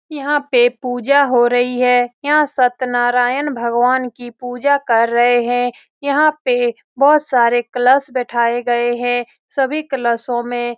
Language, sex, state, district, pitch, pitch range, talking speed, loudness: Hindi, female, Bihar, Saran, 245 Hz, 240-275 Hz, 150 wpm, -16 LUFS